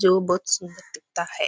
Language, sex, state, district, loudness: Hindi, female, Bihar, Kishanganj, -24 LUFS